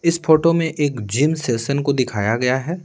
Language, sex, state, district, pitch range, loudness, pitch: Hindi, male, Bihar, Patna, 125-165 Hz, -19 LUFS, 140 Hz